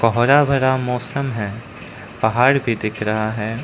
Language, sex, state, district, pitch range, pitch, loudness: Hindi, male, Arunachal Pradesh, Lower Dibang Valley, 110-130 Hz, 115 Hz, -18 LUFS